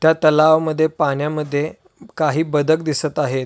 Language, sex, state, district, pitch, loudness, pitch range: Marathi, male, Maharashtra, Solapur, 155 Hz, -18 LUFS, 150-160 Hz